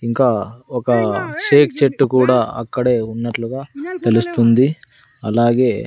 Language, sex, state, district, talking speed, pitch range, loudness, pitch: Telugu, male, Andhra Pradesh, Sri Satya Sai, 90 wpm, 115-135 Hz, -16 LUFS, 125 Hz